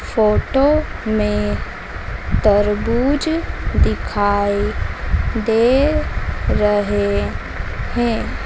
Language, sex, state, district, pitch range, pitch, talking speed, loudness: Hindi, female, Madhya Pradesh, Dhar, 200-240 Hz, 210 Hz, 50 wpm, -18 LUFS